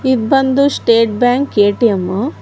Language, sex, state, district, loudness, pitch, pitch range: Kannada, female, Karnataka, Bangalore, -13 LUFS, 245 Hz, 215-270 Hz